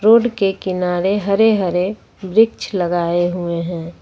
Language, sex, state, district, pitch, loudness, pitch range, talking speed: Hindi, female, Jharkhand, Ranchi, 185 Hz, -17 LUFS, 175-210 Hz, 135 wpm